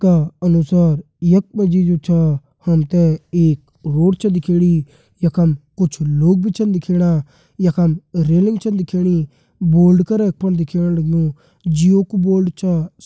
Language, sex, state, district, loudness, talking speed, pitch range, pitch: Garhwali, male, Uttarakhand, Tehri Garhwal, -16 LUFS, 150 wpm, 160-185 Hz, 175 Hz